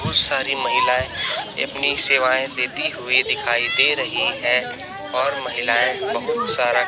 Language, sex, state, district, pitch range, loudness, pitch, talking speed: Hindi, male, Chhattisgarh, Raipur, 120-135 Hz, -18 LUFS, 130 Hz, 120 wpm